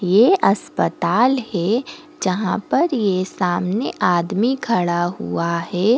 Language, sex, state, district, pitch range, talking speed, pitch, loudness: Hindi, female, Goa, North and South Goa, 180-245 Hz, 120 wpm, 200 Hz, -19 LUFS